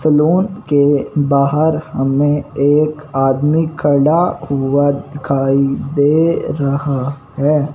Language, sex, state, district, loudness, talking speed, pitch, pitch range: Hindi, male, Punjab, Fazilka, -15 LUFS, 95 wpm, 145 Hz, 140-155 Hz